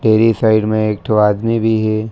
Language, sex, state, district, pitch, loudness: Chhattisgarhi, male, Chhattisgarh, Raigarh, 110 Hz, -14 LUFS